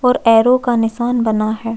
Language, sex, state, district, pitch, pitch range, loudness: Hindi, female, Chhattisgarh, Jashpur, 230 Hz, 225-245 Hz, -14 LUFS